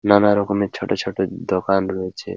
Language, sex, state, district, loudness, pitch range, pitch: Bengali, male, West Bengal, Paschim Medinipur, -20 LUFS, 95-100 Hz, 100 Hz